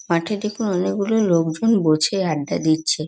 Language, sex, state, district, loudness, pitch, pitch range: Bengali, female, West Bengal, North 24 Parganas, -20 LUFS, 185 Hz, 160-210 Hz